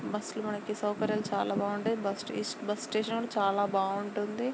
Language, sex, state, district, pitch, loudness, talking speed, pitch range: Telugu, female, Andhra Pradesh, Srikakulam, 210 Hz, -32 LUFS, 145 wpm, 205-215 Hz